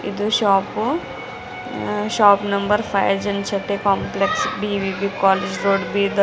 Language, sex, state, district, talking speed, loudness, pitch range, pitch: Kannada, female, Karnataka, Bidar, 125 wpm, -20 LUFS, 195-205 Hz, 200 Hz